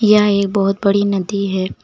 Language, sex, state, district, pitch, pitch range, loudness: Hindi, female, Uttar Pradesh, Lucknow, 200 Hz, 195-205 Hz, -16 LUFS